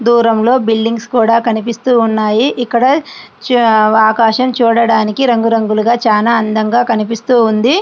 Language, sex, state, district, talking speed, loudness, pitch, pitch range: Telugu, female, Andhra Pradesh, Srikakulam, 100 wpm, -12 LUFS, 230 Hz, 220-245 Hz